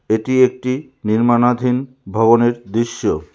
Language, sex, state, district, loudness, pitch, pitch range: Bengali, male, West Bengal, Alipurduar, -17 LUFS, 120 Hz, 115-125 Hz